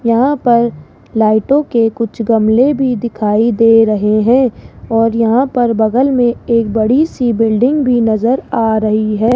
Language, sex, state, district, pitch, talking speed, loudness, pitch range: Hindi, female, Rajasthan, Jaipur, 230 Hz, 160 wpm, -12 LUFS, 220-245 Hz